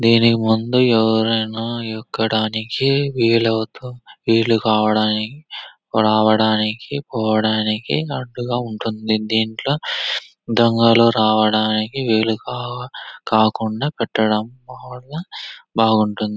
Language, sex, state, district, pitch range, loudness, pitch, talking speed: Telugu, male, Andhra Pradesh, Anantapur, 110-120 Hz, -18 LUFS, 110 Hz, 60 wpm